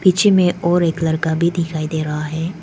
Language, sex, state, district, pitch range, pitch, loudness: Hindi, female, Arunachal Pradesh, Papum Pare, 160-175 Hz, 165 Hz, -17 LUFS